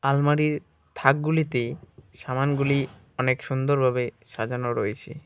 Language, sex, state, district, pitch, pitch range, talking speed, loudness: Bengali, male, West Bengal, Alipurduar, 130 Hz, 120-140 Hz, 80 wpm, -25 LUFS